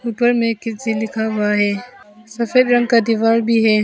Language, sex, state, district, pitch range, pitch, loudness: Hindi, female, Arunachal Pradesh, Papum Pare, 220-235 Hz, 225 Hz, -17 LUFS